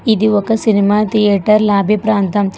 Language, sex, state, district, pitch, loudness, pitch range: Telugu, female, Telangana, Hyderabad, 210 Hz, -13 LUFS, 205-215 Hz